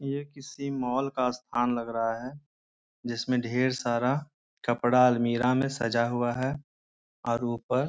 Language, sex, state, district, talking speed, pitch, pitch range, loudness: Hindi, male, Bihar, Jamui, 150 wpm, 125 Hz, 120-135 Hz, -28 LUFS